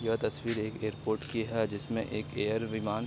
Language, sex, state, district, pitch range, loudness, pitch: Hindi, male, Bihar, Begusarai, 110-115 Hz, -34 LUFS, 110 Hz